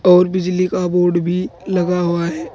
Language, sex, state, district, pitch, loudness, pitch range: Hindi, male, Uttar Pradesh, Saharanpur, 180 Hz, -17 LUFS, 175-180 Hz